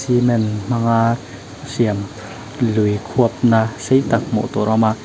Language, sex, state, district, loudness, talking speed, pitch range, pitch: Mizo, male, Mizoram, Aizawl, -18 LUFS, 155 wpm, 105-120 Hz, 115 Hz